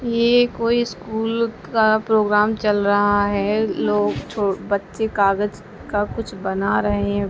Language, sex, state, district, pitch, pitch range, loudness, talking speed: Hindi, female, Uttar Pradesh, Ghazipur, 205 Hz, 200-220 Hz, -20 LUFS, 140 wpm